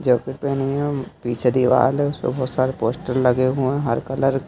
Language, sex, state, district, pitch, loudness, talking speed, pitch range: Hindi, male, Madhya Pradesh, Dhar, 130 Hz, -21 LUFS, 255 wpm, 125-135 Hz